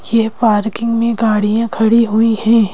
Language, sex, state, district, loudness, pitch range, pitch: Hindi, female, Madhya Pradesh, Bhopal, -14 LUFS, 220-230 Hz, 225 Hz